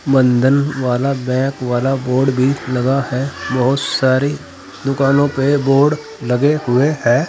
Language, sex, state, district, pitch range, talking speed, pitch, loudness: Hindi, male, Uttar Pradesh, Saharanpur, 125-140 Hz, 130 wpm, 135 Hz, -16 LUFS